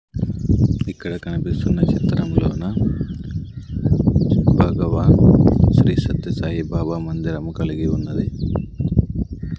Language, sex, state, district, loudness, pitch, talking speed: Telugu, male, Andhra Pradesh, Sri Satya Sai, -19 LUFS, 80 Hz, 65 wpm